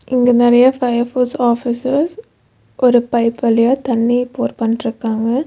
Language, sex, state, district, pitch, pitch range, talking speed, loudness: Tamil, female, Tamil Nadu, Nilgiris, 245 Hz, 235-255 Hz, 120 wpm, -15 LUFS